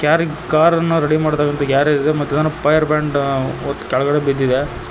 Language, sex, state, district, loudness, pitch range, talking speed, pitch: Kannada, male, Karnataka, Koppal, -16 LUFS, 140-155 Hz, 135 wpm, 150 Hz